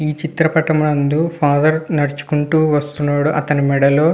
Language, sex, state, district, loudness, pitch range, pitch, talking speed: Telugu, male, Andhra Pradesh, Visakhapatnam, -16 LUFS, 145-155 Hz, 150 Hz, 115 wpm